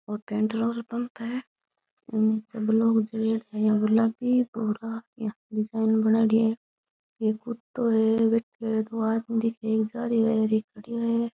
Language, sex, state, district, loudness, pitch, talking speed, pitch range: Rajasthani, female, Rajasthan, Churu, -26 LUFS, 225 Hz, 160 wpm, 220-230 Hz